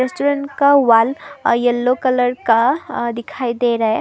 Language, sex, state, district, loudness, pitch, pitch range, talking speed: Hindi, female, Assam, Kamrup Metropolitan, -16 LUFS, 250 Hz, 235-280 Hz, 180 wpm